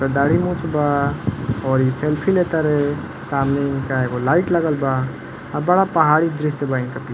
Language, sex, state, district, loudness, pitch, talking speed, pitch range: Bhojpuri, male, Uttar Pradesh, Varanasi, -19 LUFS, 145 Hz, 185 wpm, 135-160 Hz